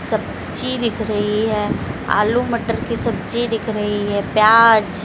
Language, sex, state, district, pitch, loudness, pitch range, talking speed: Hindi, female, Madhya Pradesh, Dhar, 220 Hz, -18 LUFS, 210-230 Hz, 145 wpm